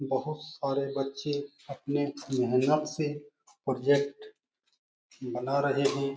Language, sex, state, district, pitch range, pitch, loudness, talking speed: Hindi, male, Bihar, Jamui, 135-150 Hz, 140 Hz, -30 LUFS, 95 wpm